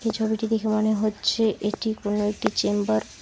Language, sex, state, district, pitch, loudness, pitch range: Bengali, female, West Bengal, Alipurduar, 215 Hz, -24 LUFS, 205-220 Hz